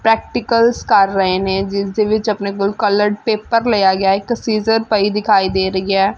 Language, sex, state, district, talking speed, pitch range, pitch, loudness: Punjabi, female, Punjab, Fazilka, 205 wpm, 195-220 Hz, 210 Hz, -15 LUFS